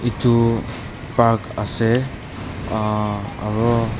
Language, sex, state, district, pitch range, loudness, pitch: Nagamese, male, Nagaland, Dimapur, 105-120 Hz, -20 LUFS, 115 Hz